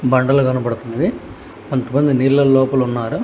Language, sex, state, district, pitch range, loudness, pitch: Telugu, male, Telangana, Hyderabad, 125-135 Hz, -16 LUFS, 130 Hz